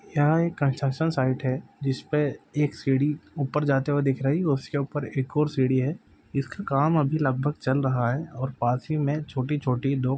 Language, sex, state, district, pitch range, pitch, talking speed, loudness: Maithili, male, Bihar, Supaul, 130-150 Hz, 140 Hz, 195 wpm, -26 LUFS